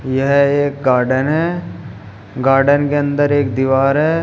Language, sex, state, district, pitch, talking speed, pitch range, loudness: Hindi, male, Uttar Pradesh, Shamli, 140 Hz, 140 wpm, 130-145 Hz, -15 LUFS